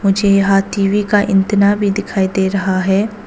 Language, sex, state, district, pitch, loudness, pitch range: Hindi, female, Arunachal Pradesh, Papum Pare, 200 Hz, -14 LUFS, 195-205 Hz